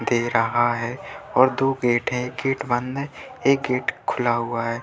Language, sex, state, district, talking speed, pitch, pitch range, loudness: Hindi, female, Bihar, Vaishali, 185 wpm, 125 Hz, 120-135 Hz, -22 LUFS